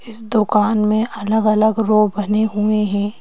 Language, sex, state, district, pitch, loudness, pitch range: Hindi, female, Madhya Pradesh, Bhopal, 215 Hz, -17 LUFS, 210-220 Hz